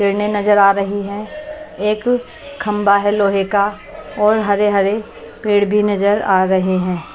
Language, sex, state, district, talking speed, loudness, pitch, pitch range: Hindi, female, Maharashtra, Washim, 160 wpm, -16 LUFS, 205 Hz, 200-210 Hz